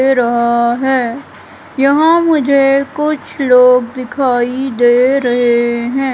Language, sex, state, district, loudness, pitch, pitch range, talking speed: Hindi, female, Madhya Pradesh, Katni, -12 LUFS, 255 Hz, 245-275 Hz, 110 wpm